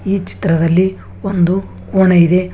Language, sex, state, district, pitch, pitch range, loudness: Kannada, male, Karnataka, Bangalore, 180 Hz, 165-190 Hz, -14 LUFS